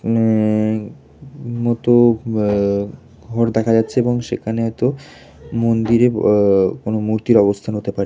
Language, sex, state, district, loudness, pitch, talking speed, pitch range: Bengali, male, West Bengal, Kolkata, -17 LUFS, 115 Hz, 110 wpm, 105-120 Hz